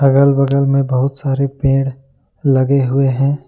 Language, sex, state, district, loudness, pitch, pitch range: Hindi, male, Jharkhand, Ranchi, -15 LUFS, 135 Hz, 135-140 Hz